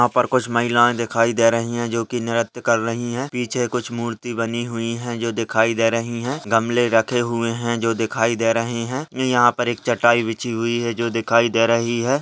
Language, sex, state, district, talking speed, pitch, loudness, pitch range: Hindi, male, Rajasthan, Churu, 225 wpm, 115 Hz, -20 LUFS, 115-120 Hz